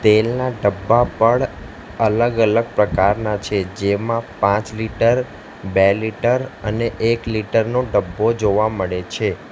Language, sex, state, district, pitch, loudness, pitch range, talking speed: Gujarati, male, Gujarat, Valsad, 110 Hz, -18 LUFS, 100-115 Hz, 130 wpm